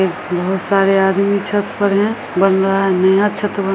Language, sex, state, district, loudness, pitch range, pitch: Maithili, female, Bihar, Samastipur, -15 LUFS, 190-200 Hz, 195 Hz